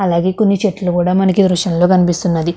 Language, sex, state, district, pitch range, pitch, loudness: Telugu, female, Andhra Pradesh, Krishna, 175-190 Hz, 180 Hz, -14 LUFS